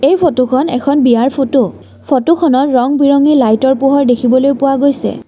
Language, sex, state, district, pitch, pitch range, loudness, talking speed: Assamese, female, Assam, Kamrup Metropolitan, 270 Hz, 255-280 Hz, -11 LUFS, 150 wpm